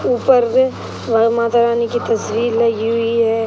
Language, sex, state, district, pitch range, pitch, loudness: Hindi, male, Bihar, Sitamarhi, 230-240 Hz, 235 Hz, -16 LUFS